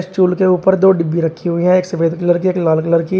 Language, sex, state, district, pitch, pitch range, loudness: Hindi, male, Uttar Pradesh, Shamli, 175 Hz, 170-185 Hz, -14 LUFS